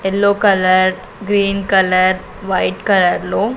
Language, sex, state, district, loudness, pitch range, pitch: Telugu, female, Andhra Pradesh, Sri Satya Sai, -14 LUFS, 185-200 Hz, 195 Hz